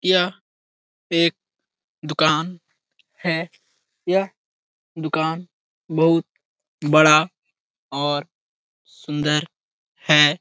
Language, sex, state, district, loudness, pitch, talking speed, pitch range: Hindi, male, Bihar, Jahanabad, -20 LUFS, 160 Hz, 65 wpm, 150-175 Hz